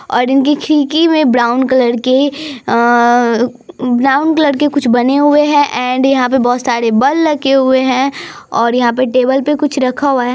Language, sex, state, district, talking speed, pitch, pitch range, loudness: Hindi, female, Bihar, Araria, 185 wpm, 260 Hz, 245-290 Hz, -12 LUFS